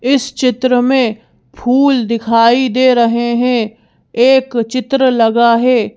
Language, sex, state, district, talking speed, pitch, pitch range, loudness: Hindi, female, Madhya Pradesh, Bhopal, 120 wpm, 245 Hz, 230-255 Hz, -12 LUFS